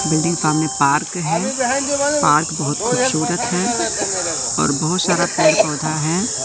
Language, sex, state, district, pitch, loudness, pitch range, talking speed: Hindi, male, Madhya Pradesh, Katni, 175 Hz, -17 LUFS, 155-240 Hz, 130 wpm